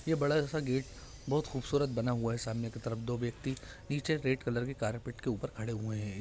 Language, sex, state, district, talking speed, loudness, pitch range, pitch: Hindi, male, Bihar, Purnia, 230 wpm, -35 LUFS, 115-140 Hz, 120 Hz